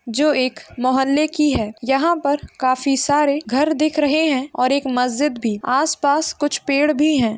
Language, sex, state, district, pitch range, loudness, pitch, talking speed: Hindi, female, Bihar, Madhepura, 255-300 Hz, -18 LUFS, 280 Hz, 180 wpm